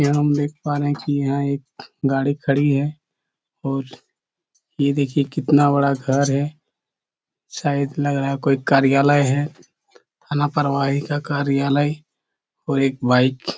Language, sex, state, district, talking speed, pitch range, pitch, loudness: Hindi, male, Chhattisgarh, Korba, 150 wpm, 140-145 Hz, 140 Hz, -20 LUFS